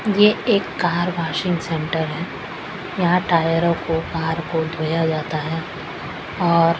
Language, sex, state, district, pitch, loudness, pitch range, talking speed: Hindi, female, Chhattisgarh, Raipur, 165 Hz, -21 LUFS, 160-175 Hz, 130 wpm